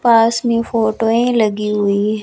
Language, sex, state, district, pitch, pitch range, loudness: Hindi, female, Chandigarh, Chandigarh, 225 Hz, 210-230 Hz, -15 LUFS